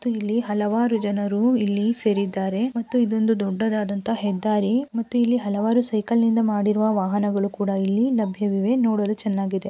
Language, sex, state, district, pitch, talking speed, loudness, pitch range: Kannada, female, Karnataka, Gulbarga, 215 Hz, 120 wpm, -22 LUFS, 205-230 Hz